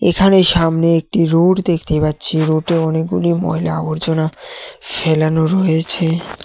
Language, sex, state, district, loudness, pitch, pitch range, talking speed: Bengali, male, Tripura, West Tripura, -15 LUFS, 165 Hz, 160-175 Hz, 110 wpm